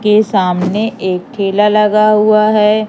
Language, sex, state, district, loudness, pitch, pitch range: Hindi, female, Madhya Pradesh, Katni, -12 LUFS, 210 Hz, 195-215 Hz